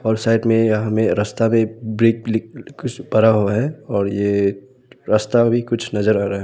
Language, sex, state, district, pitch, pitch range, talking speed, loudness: Hindi, male, Arunachal Pradesh, Lower Dibang Valley, 110 Hz, 105-115 Hz, 175 wpm, -18 LUFS